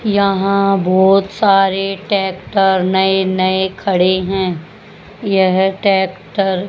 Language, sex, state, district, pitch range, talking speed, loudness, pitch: Hindi, female, Haryana, Jhajjar, 190-195 Hz, 100 wpm, -14 LUFS, 190 Hz